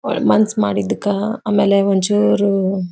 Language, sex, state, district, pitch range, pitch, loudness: Kannada, female, Karnataka, Belgaum, 190-205 Hz, 200 Hz, -16 LUFS